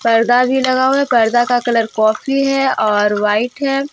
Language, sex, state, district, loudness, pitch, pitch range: Hindi, female, Jharkhand, Deoghar, -14 LUFS, 245 Hz, 220-270 Hz